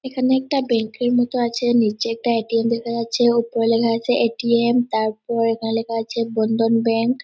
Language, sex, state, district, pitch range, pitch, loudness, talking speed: Bengali, male, West Bengal, Dakshin Dinajpur, 230-240 Hz, 230 Hz, -20 LUFS, 180 wpm